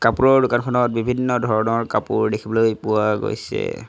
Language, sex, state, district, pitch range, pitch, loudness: Assamese, male, Assam, Sonitpur, 110-125 Hz, 115 Hz, -20 LUFS